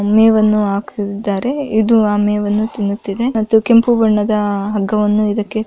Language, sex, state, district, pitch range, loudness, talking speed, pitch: Kannada, female, Karnataka, Mysore, 205-220 Hz, -15 LUFS, 115 wpm, 215 Hz